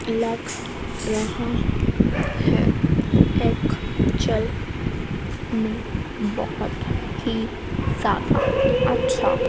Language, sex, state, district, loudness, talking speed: Hindi, female, Madhya Pradesh, Dhar, -23 LUFS, 65 wpm